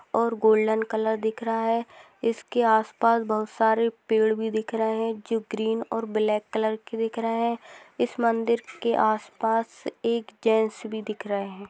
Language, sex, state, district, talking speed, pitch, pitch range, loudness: Hindi, female, Bihar, Begusarai, 175 wpm, 225 Hz, 220-230 Hz, -25 LUFS